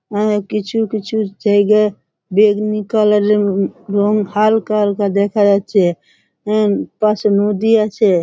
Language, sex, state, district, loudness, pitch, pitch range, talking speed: Bengali, female, West Bengal, Malda, -15 LUFS, 210 Hz, 200-215 Hz, 95 wpm